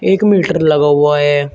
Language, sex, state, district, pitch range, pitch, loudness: Hindi, male, Uttar Pradesh, Shamli, 145-175 Hz, 150 Hz, -12 LUFS